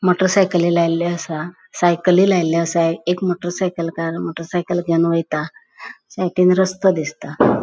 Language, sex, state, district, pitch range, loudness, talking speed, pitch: Konkani, female, Goa, North and South Goa, 165-180 Hz, -18 LUFS, 135 wpm, 175 Hz